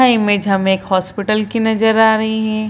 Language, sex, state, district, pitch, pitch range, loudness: Hindi, female, Bihar, Purnia, 215 Hz, 200-220 Hz, -15 LUFS